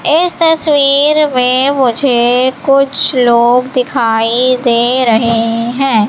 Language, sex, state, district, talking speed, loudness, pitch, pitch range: Hindi, female, Madhya Pradesh, Katni, 100 wpm, -10 LUFS, 255 Hz, 235-275 Hz